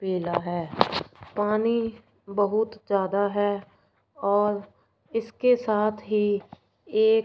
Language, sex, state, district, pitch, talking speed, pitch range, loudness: Hindi, female, Punjab, Fazilka, 205 Hz, 90 wpm, 200-225 Hz, -26 LUFS